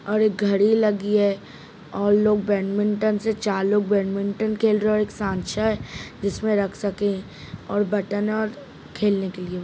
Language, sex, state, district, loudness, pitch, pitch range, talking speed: Hindi, male, Bihar, Madhepura, -22 LUFS, 205 Hz, 200-215 Hz, 170 wpm